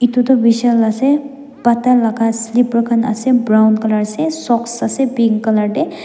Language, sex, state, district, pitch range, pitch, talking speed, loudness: Nagamese, female, Nagaland, Dimapur, 225-260 Hz, 235 Hz, 170 wpm, -14 LUFS